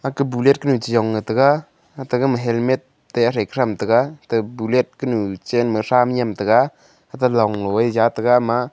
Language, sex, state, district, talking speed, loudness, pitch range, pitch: Wancho, male, Arunachal Pradesh, Longding, 200 wpm, -19 LUFS, 115-130 Hz, 120 Hz